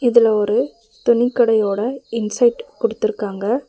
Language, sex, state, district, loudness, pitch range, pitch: Tamil, female, Tamil Nadu, Nilgiris, -18 LUFS, 215-245 Hz, 230 Hz